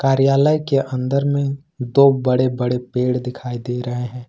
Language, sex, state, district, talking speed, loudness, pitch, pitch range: Hindi, male, Jharkhand, Ranchi, 170 wpm, -19 LUFS, 130 Hz, 125-140 Hz